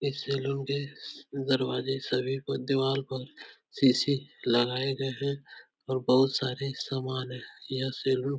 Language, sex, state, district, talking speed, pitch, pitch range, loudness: Hindi, male, Uttar Pradesh, Etah, 150 wpm, 135 Hz, 130-140 Hz, -30 LUFS